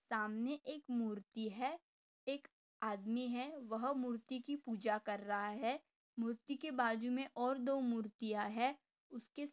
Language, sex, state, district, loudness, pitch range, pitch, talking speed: Hindi, female, Maharashtra, Pune, -42 LUFS, 220-270 Hz, 245 Hz, 145 wpm